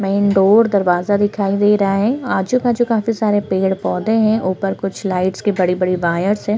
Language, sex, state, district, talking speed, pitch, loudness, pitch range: Hindi, female, Chhattisgarh, Korba, 200 wpm, 205 Hz, -16 LUFS, 190-215 Hz